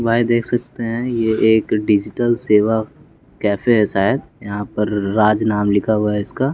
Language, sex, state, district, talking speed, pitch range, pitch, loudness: Hindi, male, Bihar, West Champaran, 185 wpm, 105-120 Hz, 110 Hz, -17 LUFS